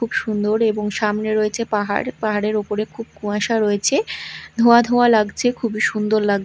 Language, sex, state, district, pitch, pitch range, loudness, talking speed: Bengali, female, Odisha, Malkangiri, 215 Hz, 210-230 Hz, -19 LUFS, 170 wpm